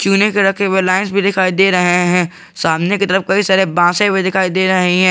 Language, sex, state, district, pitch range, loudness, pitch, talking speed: Hindi, male, Jharkhand, Garhwa, 180-195 Hz, -13 LUFS, 190 Hz, 200 wpm